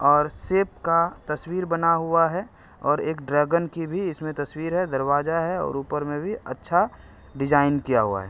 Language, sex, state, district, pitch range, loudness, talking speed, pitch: Hindi, male, Uttar Pradesh, Hamirpur, 145-170 Hz, -24 LUFS, 190 wpm, 155 Hz